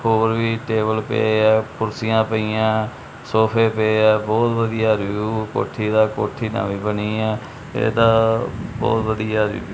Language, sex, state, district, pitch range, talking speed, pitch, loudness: Punjabi, male, Punjab, Kapurthala, 110-115 Hz, 140 wpm, 110 Hz, -19 LUFS